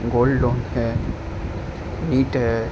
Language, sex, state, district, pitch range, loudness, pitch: Hindi, male, Uttar Pradesh, Ghazipur, 115-125 Hz, -22 LUFS, 120 Hz